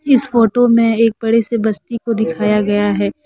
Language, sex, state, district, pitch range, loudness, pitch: Hindi, female, Jharkhand, Deoghar, 210-235 Hz, -15 LUFS, 230 Hz